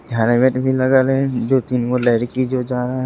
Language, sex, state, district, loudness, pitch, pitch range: Angika, male, Bihar, Begusarai, -17 LUFS, 130 Hz, 120-130 Hz